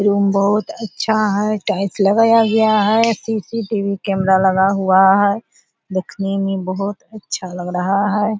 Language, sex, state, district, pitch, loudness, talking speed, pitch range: Hindi, female, Bihar, Purnia, 200 Hz, -17 LUFS, 145 wpm, 195-215 Hz